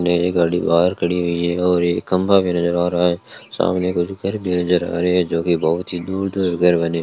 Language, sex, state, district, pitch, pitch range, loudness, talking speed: Hindi, male, Rajasthan, Bikaner, 90 Hz, 85-90 Hz, -18 LUFS, 245 wpm